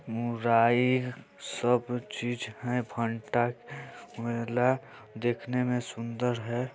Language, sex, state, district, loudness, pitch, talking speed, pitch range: Hindi, male, Chhattisgarh, Balrampur, -30 LUFS, 120 Hz, 90 wpm, 115-125 Hz